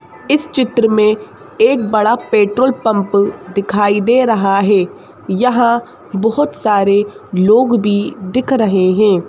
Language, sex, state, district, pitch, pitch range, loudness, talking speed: Hindi, female, Madhya Pradesh, Bhopal, 215 Hz, 200-245 Hz, -14 LUFS, 125 wpm